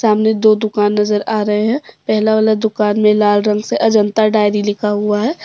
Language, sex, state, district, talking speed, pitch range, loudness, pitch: Hindi, female, Jharkhand, Deoghar, 210 wpm, 210-220 Hz, -14 LUFS, 215 Hz